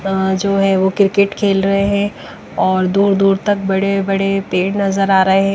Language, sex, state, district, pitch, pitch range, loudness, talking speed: Hindi, female, Bihar, West Champaran, 195 Hz, 190-200 Hz, -15 LUFS, 175 wpm